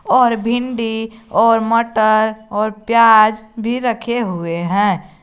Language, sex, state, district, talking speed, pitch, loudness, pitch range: Hindi, female, Jharkhand, Garhwa, 115 wpm, 225 Hz, -15 LUFS, 215-230 Hz